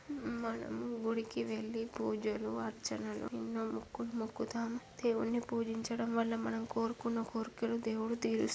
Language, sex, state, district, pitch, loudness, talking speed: Telugu, male, Andhra Pradesh, Chittoor, 225 Hz, -38 LUFS, 120 wpm